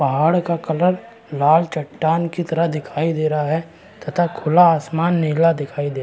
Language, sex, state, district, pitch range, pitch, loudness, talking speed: Hindi, male, Uttarakhand, Tehri Garhwal, 155-170 Hz, 165 Hz, -19 LUFS, 180 wpm